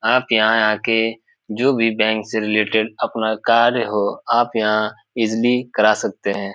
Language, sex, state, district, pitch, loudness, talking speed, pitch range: Hindi, male, Bihar, Supaul, 110 Hz, -18 LUFS, 155 wpm, 110-115 Hz